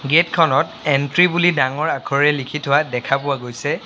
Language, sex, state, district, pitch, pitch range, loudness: Assamese, male, Assam, Sonitpur, 145 Hz, 135-160 Hz, -18 LUFS